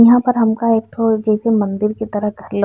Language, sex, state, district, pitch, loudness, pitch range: Bhojpuri, female, Uttar Pradesh, Ghazipur, 220 Hz, -16 LUFS, 210-230 Hz